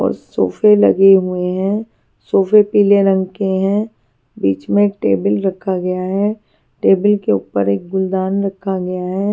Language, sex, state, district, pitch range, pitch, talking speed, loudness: Hindi, female, Haryana, Charkhi Dadri, 180-200 Hz, 190 Hz, 160 wpm, -15 LUFS